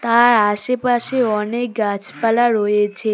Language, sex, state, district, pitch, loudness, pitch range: Bengali, female, West Bengal, Cooch Behar, 225 Hz, -17 LUFS, 210-240 Hz